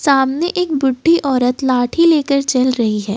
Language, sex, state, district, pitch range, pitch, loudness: Hindi, female, Jharkhand, Ranchi, 250-300 Hz, 270 Hz, -15 LUFS